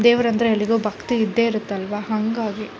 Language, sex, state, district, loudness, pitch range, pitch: Kannada, female, Karnataka, Shimoga, -21 LUFS, 210-230 Hz, 220 Hz